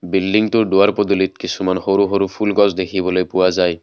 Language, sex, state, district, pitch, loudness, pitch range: Assamese, male, Assam, Kamrup Metropolitan, 95 Hz, -16 LUFS, 90-100 Hz